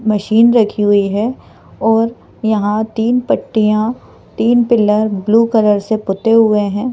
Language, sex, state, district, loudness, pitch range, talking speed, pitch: Hindi, female, Madhya Pradesh, Bhopal, -14 LUFS, 210-230 Hz, 140 wpm, 220 Hz